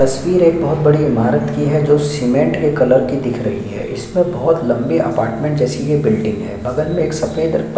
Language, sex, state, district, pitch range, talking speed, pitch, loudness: Hindi, male, Chhattisgarh, Sukma, 125-155 Hz, 210 wpm, 145 Hz, -16 LUFS